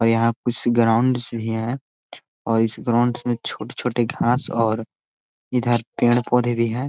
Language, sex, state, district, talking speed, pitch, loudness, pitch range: Hindi, male, Chhattisgarh, Korba, 150 wpm, 120 Hz, -21 LUFS, 115-120 Hz